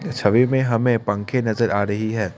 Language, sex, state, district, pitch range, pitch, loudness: Hindi, male, Assam, Kamrup Metropolitan, 105-125 Hz, 115 Hz, -20 LUFS